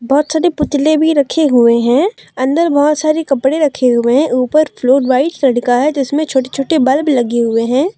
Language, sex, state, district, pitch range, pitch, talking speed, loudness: Hindi, female, Jharkhand, Deoghar, 255-310 Hz, 275 Hz, 190 wpm, -13 LUFS